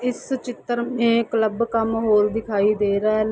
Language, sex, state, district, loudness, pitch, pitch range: Hindi, female, Bihar, East Champaran, -21 LUFS, 225 Hz, 215-235 Hz